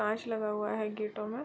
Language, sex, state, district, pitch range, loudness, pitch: Hindi, female, Chhattisgarh, Korba, 210-220 Hz, -34 LUFS, 215 Hz